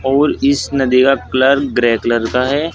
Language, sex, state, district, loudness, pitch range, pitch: Hindi, male, Uttar Pradesh, Saharanpur, -14 LUFS, 125-140 Hz, 135 Hz